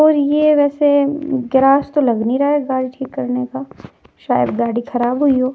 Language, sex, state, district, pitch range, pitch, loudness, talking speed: Hindi, female, Himachal Pradesh, Shimla, 255-285 Hz, 270 Hz, -16 LUFS, 195 wpm